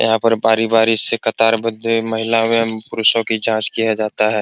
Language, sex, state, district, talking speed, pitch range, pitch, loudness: Hindi, male, Bihar, Supaul, 175 wpm, 110-115 Hz, 115 Hz, -16 LUFS